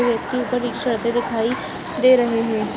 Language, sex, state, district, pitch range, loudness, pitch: Hindi, female, Uttar Pradesh, Jalaun, 230-250 Hz, -20 LUFS, 240 Hz